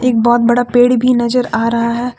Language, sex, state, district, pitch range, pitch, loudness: Hindi, female, Jharkhand, Deoghar, 235-245 Hz, 245 Hz, -13 LUFS